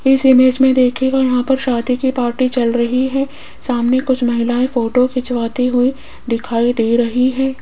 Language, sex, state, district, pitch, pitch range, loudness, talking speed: Hindi, female, Rajasthan, Jaipur, 250 Hz, 240-260 Hz, -15 LUFS, 175 wpm